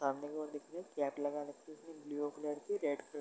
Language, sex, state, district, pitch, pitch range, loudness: Hindi, male, Uttar Pradesh, Varanasi, 145 Hz, 145-155 Hz, -41 LUFS